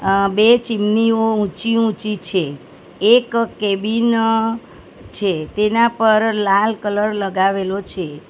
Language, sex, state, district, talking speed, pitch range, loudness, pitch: Gujarati, female, Gujarat, Valsad, 100 wpm, 195-225 Hz, -17 LUFS, 210 Hz